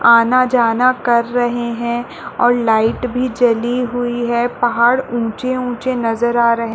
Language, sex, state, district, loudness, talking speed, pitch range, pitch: Hindi, female, Chhattisgarh, Balrampur, -16 LUFS, 160 wpm, 235-245 Hz, 240 Hz